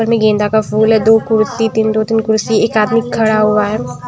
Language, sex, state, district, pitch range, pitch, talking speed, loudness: Hindi, female, Punjab, Kapurthala, 215-225 Hz, 220 Hz, 220 wpm, -13 LUFS